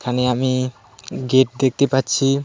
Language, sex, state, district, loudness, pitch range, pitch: Bengali, male, West Bengal, Cooch Behar, -19 LUFS, 125-135 Hz, 130 Hz